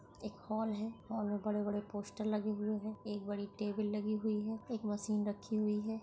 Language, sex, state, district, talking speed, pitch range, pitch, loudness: Marathi, female, Maharashtra, Sindhudurg, 210 wpm, 210-215 Hz, 215 Hz, -39 LUFS